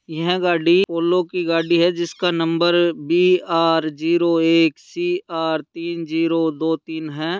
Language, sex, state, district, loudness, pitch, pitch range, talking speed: Hindi, female, Bihar, Darbhanga, -19 LUFS, 165 Hz, 165-175 Hz, 155 wpm